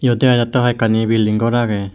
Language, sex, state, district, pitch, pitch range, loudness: Chakma, male, Tripura, West Tripura, 115 Hz, 110-120 Hz, -15 LUFS